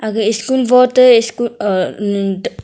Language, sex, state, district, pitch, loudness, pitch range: Wancho, female, Arunachal Pradesh, Longding, 220 Hz, -13 LUFS, 205-250 Hz